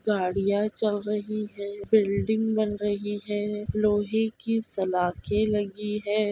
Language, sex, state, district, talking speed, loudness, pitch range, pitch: Hindi, female, Bihar, Kishanganj, 125 wpm, -27 LUFS, 205-215 Hz, 210 Hz